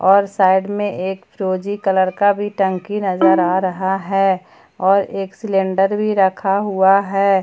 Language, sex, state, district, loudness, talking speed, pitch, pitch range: Hindi, female, Jharkhand, Palamu, -17 LUFS, 160 wpm, 195 Hz, 190-200 Hz